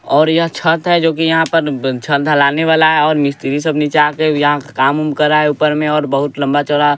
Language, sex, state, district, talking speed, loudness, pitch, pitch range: Hindi, male, Bihar, West Champaran, 260 wpm, -13 LUFS, 150 Hz, 145-160 Hz